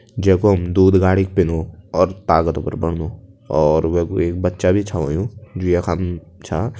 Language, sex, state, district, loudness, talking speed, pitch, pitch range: Kumaoni, male, Uttarakhand, Tehri Garhwal, -18 LUFS, 170 wpm, 90 Hz, 85-95 Hz